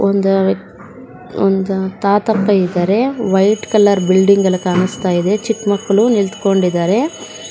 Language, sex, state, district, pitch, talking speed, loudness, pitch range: Kannada, female, Karnataka, Bangalore, 200 Hz, 105 wpm, -14 LUFS, 190-210 Hz